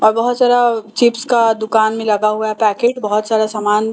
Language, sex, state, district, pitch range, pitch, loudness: Hindi, female, Bihar, Katihar, 215-235 Hz, 220 Hz, -15 LUFS